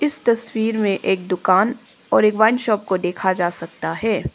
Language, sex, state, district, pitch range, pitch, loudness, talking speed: Hindi, female, Arunachal Pradesh, Papum Pare, 185-225 Hz, 205 Hz, -19 LUFS, 195 wpm